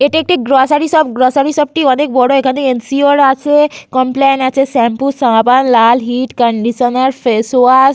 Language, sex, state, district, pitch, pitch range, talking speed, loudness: Bengali, female, West Bengal, Malda, 265 Hz, 250-280 Hz, 160 wpm, -11 LUFS